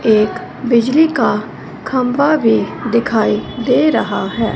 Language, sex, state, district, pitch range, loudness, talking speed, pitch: Hindi, female, Punjab, Fazilka, 230-280 Hz, -15 LUFS, 120 wpm, 245 Hz